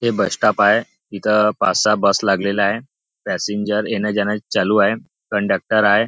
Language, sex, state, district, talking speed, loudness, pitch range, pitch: Marathi, male, Maharashtra, Nagpur, 170 wpm, -18 LUFS, 100-105 Hz, 105 Hz